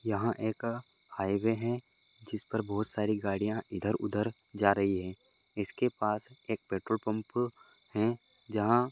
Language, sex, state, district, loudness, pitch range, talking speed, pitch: Hindi, male, Goa, North and South Goa, -33 LUFS, 105-115 Hz, 150 wpm, 110 Hz